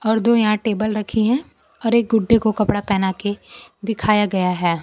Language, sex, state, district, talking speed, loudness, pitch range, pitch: Hindi, female, Bihar, Kaimur, 200 wpm, -19 LUFS, 205-230 Hz, 215 Hz